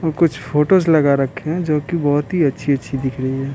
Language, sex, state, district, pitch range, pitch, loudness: Hindi, male, Bihar, Patna, 135-160 Hz, 145 Hz, -18 LUFS